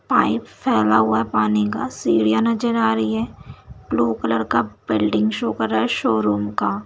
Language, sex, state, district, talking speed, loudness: Hindi, female, Bihar, Saharsa, 185 wpm, -20 LUFS